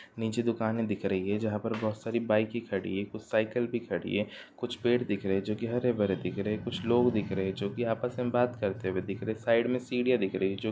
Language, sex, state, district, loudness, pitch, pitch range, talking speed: Hindi, male, Bihar, Sitamarhi, -31 LUFS, 110 Hz, 100-120 Hz, 280 wpm